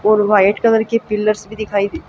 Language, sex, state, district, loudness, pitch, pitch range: Hindi, female, Haryana, Jhajjar, -15 LUFS, 215 Hz, 205-220 Hz